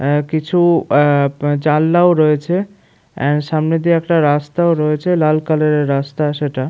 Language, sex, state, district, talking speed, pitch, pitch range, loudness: Bengali, male, West Bengal, Paschim Medinipur, 135 wpm, 155 Hz, 145-165 Hz, -15 LUFS